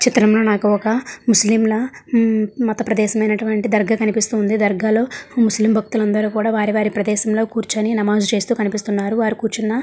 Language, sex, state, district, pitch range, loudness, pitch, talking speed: Telugu, female, Andhra Pradesh, Srikakulam, 215-225 Hz, -17 LUFS, 220 Hz, 160 wpm